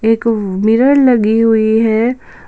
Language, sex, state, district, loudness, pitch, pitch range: Hindi, female, Jharkhand, Palamu, -12 LUFS, 225 Hz, 220-235 Hz